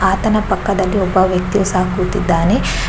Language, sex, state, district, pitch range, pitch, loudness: Kannada, female, Karnataka, Shimoga, 185-200 Hz, 190 Hz, -15 LUFS